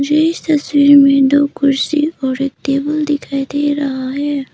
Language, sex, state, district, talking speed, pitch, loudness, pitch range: Hindi, female, Arunachal Pradesh, Papum Pare, 170 wpm, 285 Hz, -14 LUFS, 275-290 Hz